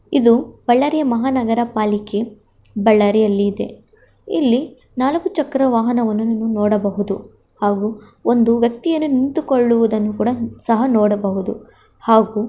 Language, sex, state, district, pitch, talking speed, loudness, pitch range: Kannada, female, Karnataka, Bellary, 230 Hz, 95 wpm, -17 LUFS, 210-255 Hz